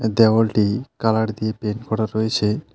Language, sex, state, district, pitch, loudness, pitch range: Bengali, male, West Bengal, Alipurduar, 110 Hz, -20 LUFS, 110-115 Hz